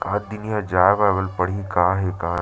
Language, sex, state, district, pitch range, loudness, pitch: Chhattisgarhi, male, Chhattisgarh, Sarguja, 90-105 Hz, -21 LUFS, 95 Hz